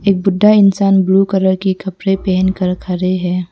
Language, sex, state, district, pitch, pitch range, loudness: Hindi, female, Arunachal Pradesh, Lower Dibang Valley, 190 Hz, 185-195 Hz, -14 LUFS